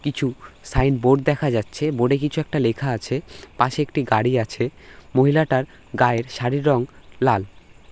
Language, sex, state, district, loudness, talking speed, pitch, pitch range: Bengali, male, West Bengal, North 24 Parganas, -21 LUFS, 145 wpm, 130 Hz, 120-145 Hz